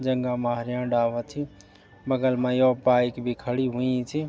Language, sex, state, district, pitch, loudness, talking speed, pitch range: Garhwali, male, Uttarakhand, Tehri Garhwal, 125 Hz, -25 LUFS, 180 wpm, 120-130 Hz